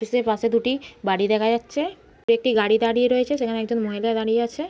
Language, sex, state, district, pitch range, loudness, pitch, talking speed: Bengali, female, West Bengal, Dakshin Dinajpur, 220-250 Hz, -22 LUFS, 230 Hz, 215 wpm